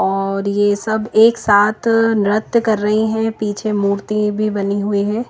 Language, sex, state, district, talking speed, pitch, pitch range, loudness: Hindi, female, Himachal Pradesh, Shimla, 170 wpm, 210 Hz, 205-220 Hz, -16 LUFS